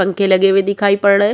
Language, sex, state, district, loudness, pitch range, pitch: Hindi, female, Uttar Pradesh, Jyotiba Phule Nagar, -13 LUFS, 195-200 Hz, 200 Hz